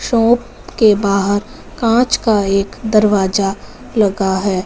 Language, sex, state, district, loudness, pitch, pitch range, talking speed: Hindi, female, Punjab, Fazilka, -15 LUFS, 205 Hz, 195-225 Hz, 115 wpm